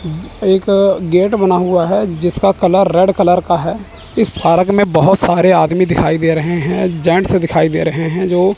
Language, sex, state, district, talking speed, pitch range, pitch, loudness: Hindi, male, Chandigarh, Chandigarh, 190 wpm, 170-190 Hz, 180 Hz, -13 LUFS